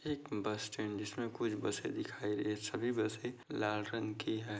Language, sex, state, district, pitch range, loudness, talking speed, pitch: Hindi, male, Maharashtra, Dhule, 105-115 Hz, -39 LUFS, 170 wpm, 105 Hz